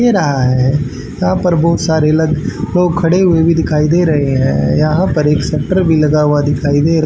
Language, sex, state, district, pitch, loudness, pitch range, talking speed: Hindi, male, Haryana, Charkhi Dadri, 155 Hz, -13 LUFS, 145-170 Hz, 220 wpm